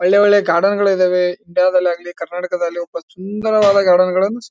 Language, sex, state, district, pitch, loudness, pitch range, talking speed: Kannada, male, Karnataka, Bijapur, 180 Hz, -15 LUFS, 175-200 Hz, 145 wpm